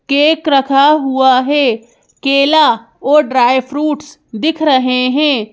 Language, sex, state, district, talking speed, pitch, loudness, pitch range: Hindi, female, Madhya Pradesh, Bhopal, 120 wpm, 275 Hz, -12 LUFS, 255-300 Hz